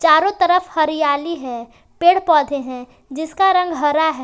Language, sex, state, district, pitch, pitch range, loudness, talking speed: Hindi, female, Jharkhand, Palamu, 310 Hz, 285-355 Hz, -16 LUFS, 155 wpm